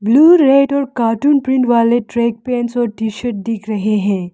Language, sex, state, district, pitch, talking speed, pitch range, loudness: Hindi, female, Arunachal Pradesh, Lower Dibang Valley, 235 Hz, 180 wpm, 220-260 Hz, -14 LUFS